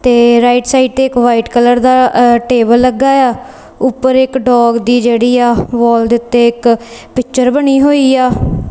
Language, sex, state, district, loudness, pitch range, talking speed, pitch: Punjabi, female, Punjab, Kapurthala, -10 LUFS, 235-255 Hz, 170 wpm, 245 Hz